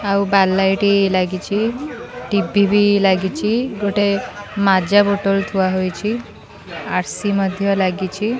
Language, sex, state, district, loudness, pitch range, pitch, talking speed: Odia, female, Odisha, Khordha, -17 LUFS, 190-205 Hz, 200 Hz, 105 wpm